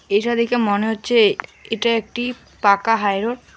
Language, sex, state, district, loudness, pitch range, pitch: Bengali, male, West Bengal, Alipurduar, -19 LUFS, 215-240 Hz, 230 Hz